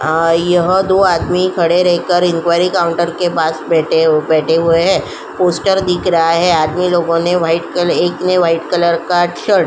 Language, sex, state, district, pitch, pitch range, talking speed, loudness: Hindi, female, Uttar Pradesh, Jyotiba Phule Nagar, 170 Hz, 165-180 Hz, 185 wpm, -13 LUFS